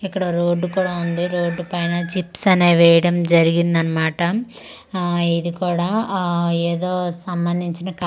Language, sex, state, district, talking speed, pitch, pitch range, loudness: Telugu, female, Andhra Pradesh, Manyam, 125 wpm, 175 Hz, 170-180 Hz, -19 LUFS